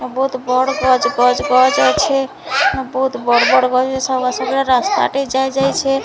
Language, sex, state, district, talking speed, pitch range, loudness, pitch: Odia, female, Odisha, Sambalpur, 170 wpm, 255-270 Hz, -15 LUFS, 260 Hz